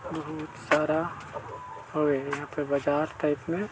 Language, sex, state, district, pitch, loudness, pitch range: Chhattisgarhi, male, Chhattisgarh, Balrampur, 155 Hz, -29 LUFS, 145-170 Hz